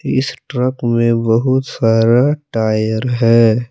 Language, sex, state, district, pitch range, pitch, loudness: Hindi, male, Jharkhand, Palamu, 115-130 Hz, 115 Hz, -14 LUFS